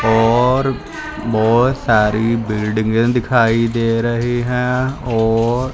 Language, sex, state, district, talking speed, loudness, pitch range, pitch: Hindi, male, Punjab, Fazilka, 95 wpm, -16 LUFS, 110-125 Hz, 115 Hz